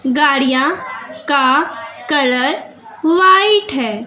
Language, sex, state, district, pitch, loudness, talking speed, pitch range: Hindi, female, Bihar, West Champaran, 285 Hz, -13 LUFS, 75 wpm, 260-325 Hz